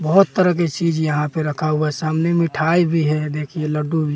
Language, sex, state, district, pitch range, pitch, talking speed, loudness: Hindi, male, Bihar, West Champaran, 150-165 Hz, 155 Hz, 230 wpm, -19 LUFS